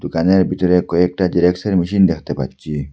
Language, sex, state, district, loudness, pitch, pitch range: Bengali, male, Assam, Hailakandi, -16 LUFS, 90 Hz, 85-95 Hz